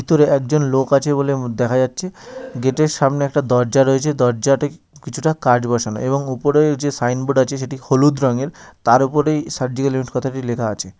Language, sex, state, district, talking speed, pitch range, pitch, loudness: Bengali, male, West Bengal, North 24 Parganas, 175 wpm, 130-145 Hz, 135 Hz, -17 LUFS